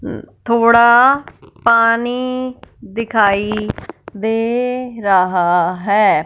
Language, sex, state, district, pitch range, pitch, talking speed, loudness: Hindi, female, Punjab, Fazilka, 205-245 Hz, 230 Hz, 65 wpm, -15 LUFS